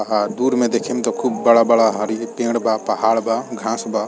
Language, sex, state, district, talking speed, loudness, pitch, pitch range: Bhojpuri, male, Bihar, East Champaran, 205 wpm, -18 LUFS, 115 Hz, 110-115 Hz